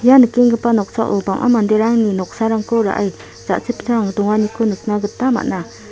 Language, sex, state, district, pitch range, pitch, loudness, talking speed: Garo, female, Meghalaya, South Garo Hills, 210-235 Hz, 225 Hz, -16 LUFS, 120 wpm